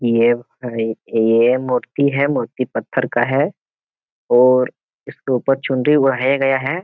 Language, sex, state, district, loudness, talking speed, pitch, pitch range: Hindi, male, Bihar, Jamui, -17 LUFS, 140 wpm, 130 Hz, 120-135 Hz